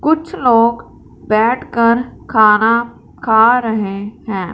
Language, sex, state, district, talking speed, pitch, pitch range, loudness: Hindi, female, Punjab, Fazilka, 105 wpm, 230 Hz, 215-240 Hz, -14 LUFS